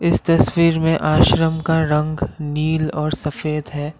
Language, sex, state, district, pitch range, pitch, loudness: Hindi, male, Assam, Kamrup Metropolitan, 150-160 Hz, 155 Hz, -18 LUFS